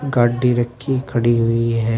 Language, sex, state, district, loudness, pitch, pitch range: Hindi, male, Uttar Pradesh, Shamli, -18 LUFS, 120 Hz, 115-125 Hz